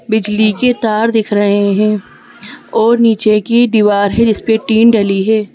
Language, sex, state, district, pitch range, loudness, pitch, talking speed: Hindi, female, Madhya Pradesh, Bhopal, 210-230 Hz, -12 LUFS, 220 Hz, 175 wpm